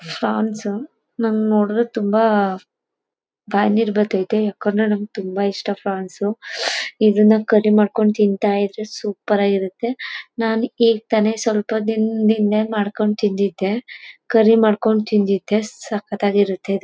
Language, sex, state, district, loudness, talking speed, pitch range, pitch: Kannada, female, Karnataka, Mysore, -19 LUFS, 115 wpm, 205-220 Hz, 215 Hz